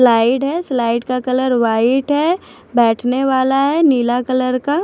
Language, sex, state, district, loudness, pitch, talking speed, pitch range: Hindi, female, Punjab, Fazilka, -16 LUFS, 255 Hz, 160 wpm, 240-275 Hz